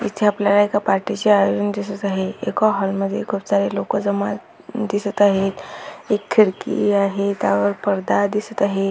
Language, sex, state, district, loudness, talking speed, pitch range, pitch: Marathi, female, Maharashtra, Aurangabad, -19 LUFS, 160 wpm, 195-210 Hz, 200 Hz